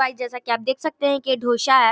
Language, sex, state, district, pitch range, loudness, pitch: Maithili, female, Bihar, Darbhanga, 245-270 Hz, -21 LUFS, 260 Hz